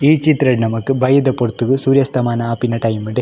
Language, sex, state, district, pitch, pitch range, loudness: Tulu, male, Karnataka, Dakshina Kannada, 125 Hz, 115-135 Hz, -15 LUFS